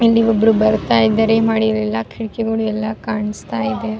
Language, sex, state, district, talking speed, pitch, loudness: Kannada, female, Karnataka, Raichur, 135 wpm, 215 Hz, -17 LUFS